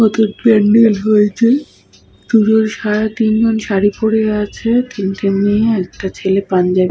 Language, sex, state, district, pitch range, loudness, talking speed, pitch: Bengali, female, Jharkhand, Sahebganj, 200-220 Hz, -14 LUFS, 130 wpm, 215 Hz